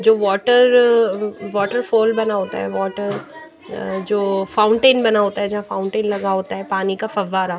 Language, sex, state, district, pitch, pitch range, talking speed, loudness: Hindi, female, Bihar, Patna, 205 Hz, 195-225 Hz, 165 wpm, -18 LUFS